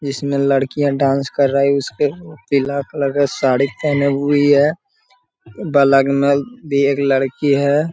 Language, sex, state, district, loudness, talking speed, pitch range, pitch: Hindi, male, Bihar, Jamui, -16 LUFS, 145 wpm, 140-145 Hz, 140 Hz